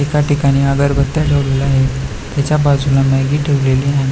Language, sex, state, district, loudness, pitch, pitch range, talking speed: Marathi, male, Maharashtra, Pune, -14 LUFS, 140 Hz, 135-145 Hz, 145 wpm